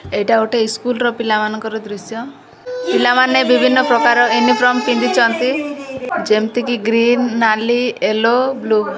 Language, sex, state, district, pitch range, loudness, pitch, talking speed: Odia, female, Odisha, Malkangiri, 220-250 Hz, -15 LUFS, 235 Hz, 115 wpm